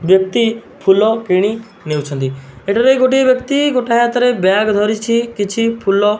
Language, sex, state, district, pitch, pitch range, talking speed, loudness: Odia, male, Odisha, Malkangiri, 220 Hz, 190-235 Hz, 135 wpm, -14 LUFS